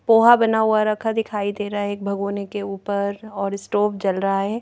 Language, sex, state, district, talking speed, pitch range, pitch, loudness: Hindi, female, Madhya Pradesh, Bhopal, 220 wpm, 200-215 Hz, 205 Hz, -21 LUFS